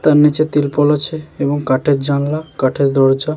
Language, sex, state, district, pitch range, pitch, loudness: Bengali, male, West Bengal, Jalpaiguri, 140-155 Hz, 145 Hz, -15 LUFS